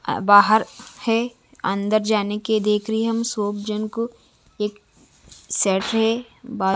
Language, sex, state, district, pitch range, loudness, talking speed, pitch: Hindi, female, Chhattisgarh, Raipur, 205-230 Hz, -21 LUFS, 140 wpm, 215 Hz